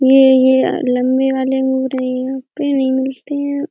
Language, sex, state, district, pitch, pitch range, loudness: Hindi, female, Uttar Pradesh, Etah, 265 Hz, 260-270 Hz, -15 LUFS